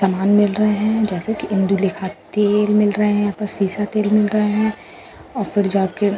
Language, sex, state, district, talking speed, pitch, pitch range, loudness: Hindi, female, Bihar, Katihar, 225 wpm, 205 Hz, 195-210 Hz, -18 LUFS